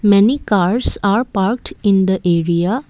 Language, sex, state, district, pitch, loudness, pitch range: English, female, Assam, Kamrup Metropolitan, 200 Hz, -15 LUFS, 190-235 Hz